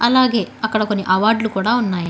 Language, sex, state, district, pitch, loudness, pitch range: Telugu, female, Telangana, Hyderabad, 220 Hz, -17 LUFS, 195-230 Hz